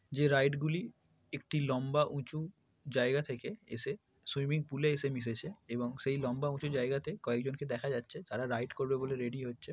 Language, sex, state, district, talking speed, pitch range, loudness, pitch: Bengali, male, West Bengal, Paschim Medinipur, 165 wpm, 130-145 Hz, -36 LUFS, 135 Hz